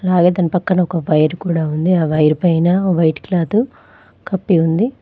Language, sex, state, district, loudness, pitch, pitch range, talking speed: Telugu, female, Telangana, Mahabubabad, -16 LUFS, 175 Hz, 165-185 Hz, 155 wpm